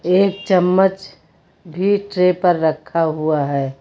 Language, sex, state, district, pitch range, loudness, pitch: Hindi, female, Uttar Pradesh, Lucknow, 160-190 Hz, -17 LUFS, 180 Hz